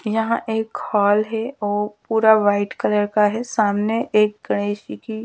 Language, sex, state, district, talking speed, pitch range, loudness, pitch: Hindi, female, Bihar, Patna, 170 wpm, 205-225 Hz, -20 LUFS, 215 Hz